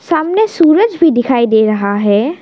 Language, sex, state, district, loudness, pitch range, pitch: Hindi, female, Arunachal Pradesh, Lower Dibang Valley, -11 LUFS, 220-350 Hz, 300 Hz